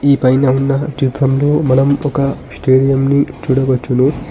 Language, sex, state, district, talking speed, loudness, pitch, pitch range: Telugu, male, Telangana, Hyderabad, 125 wpm, -14 LUFS, 135 Hz, 130-140 Hz